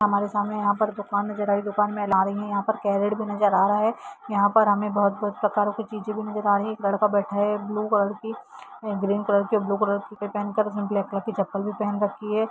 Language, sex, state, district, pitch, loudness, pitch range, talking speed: Hindi, female, Jharkhand, Jamtara, 205 Hz, -24 LUFS, 200-210 Hz, 305 wpm